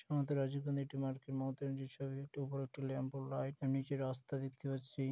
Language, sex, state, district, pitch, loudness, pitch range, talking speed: Bengali, male, West Bengal, Malda, 135 Hz, -42 LUFS, 135-140 Hz, 210 wpm